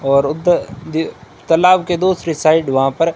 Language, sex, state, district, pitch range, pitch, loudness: Hindi, male, Rajasthan, Bikaner, 145-175 Hz, 165 Hz, -15 LUFS